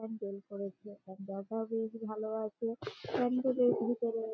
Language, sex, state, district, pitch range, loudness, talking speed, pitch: Bengali, female, West Bengal, Malda, 200-230 Hz, -36 LUFS, 110 wpm, 220 Hz